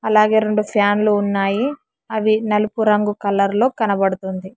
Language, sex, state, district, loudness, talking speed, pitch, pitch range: Telugu, female, Telangana, Hyderabad, -18 LUFS, 130 wpm, 210 Hz, 200-220 Hz